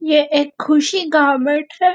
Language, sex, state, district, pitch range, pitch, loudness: Hindi, female, Chhattisgarh, Bastar, 290-315 Hz, 300 Hz, -16 LUFS